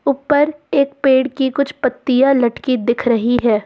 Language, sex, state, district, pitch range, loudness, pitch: Hindi, female, Jharkhand, Ranchi, 245-280 Hz, -16 LUFS, 265 Hz